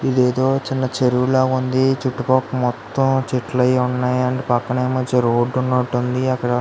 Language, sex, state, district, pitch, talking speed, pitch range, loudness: Telugu, male, Andhra Pradesh, Visakhapatnam, 130 Hz, 170 wpm, 125-130 Hz, -19 LUFS